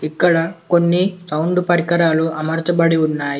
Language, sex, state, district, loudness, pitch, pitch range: Telugu, male, Telangana, Komaram Bheem, -17 LUFS, 165 Hz, 160-175 Hz